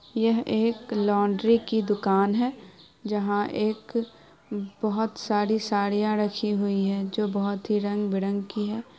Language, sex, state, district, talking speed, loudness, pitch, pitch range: Hindi, female, Bihar, Araria, 145 wpm, -26 LUFS, 210 Hz, 200-220 Hz